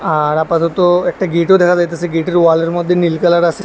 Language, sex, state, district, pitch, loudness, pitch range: Bengali, male, Tripura, West Tripura, 175 Hz, -13 LUFS, 165-175 Hz